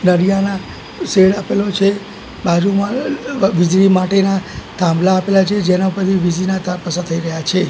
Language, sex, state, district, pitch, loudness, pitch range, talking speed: Gujarati, male, Gujarat, Gandhinagar, 190 Hz, -15 LUFS, 180-200 Hz, 140 wpm